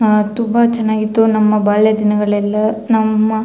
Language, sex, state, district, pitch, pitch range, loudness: Kannada, female, Karnataka, Chamarajanagar, 215 Hz, 210-220 Hz, -14 LUFS